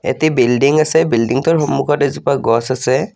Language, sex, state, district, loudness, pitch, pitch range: Assamese, male, Assam, Kamrup Metropolitan, -14 LUFS, 140 Hz, 125-155 Hz